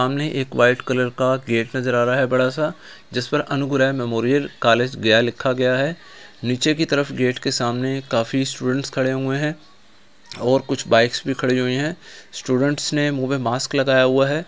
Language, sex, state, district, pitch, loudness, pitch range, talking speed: Hindi, male, Bihar, Gaya, 130 Hz, -20 LUFS, 125-140 Hz, 190 wpm